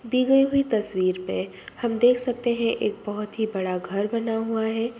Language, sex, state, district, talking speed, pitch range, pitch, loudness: Hindi, female, Bihar, Sitamarhi, 215 wpm, 205-240 Hz, 225 Hz, -24 LUFS